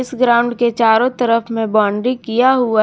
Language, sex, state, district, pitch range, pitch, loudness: Hindi, female, Jharkhand, Garhwa, 225-250 Hz, 235 Hz, -15 LUFS